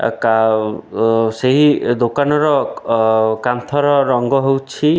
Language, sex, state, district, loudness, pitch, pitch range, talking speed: Odia, male, Odisha, Khordha, -15 LUFS, 125 Hz, 110-145 Hz, 110 wpm